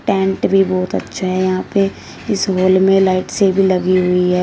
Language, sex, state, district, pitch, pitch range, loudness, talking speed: Hindi, female, Uttar Pradesh, Shamli, 190 Hz, 185-195 Hz, -15 LUFS, 205 wpm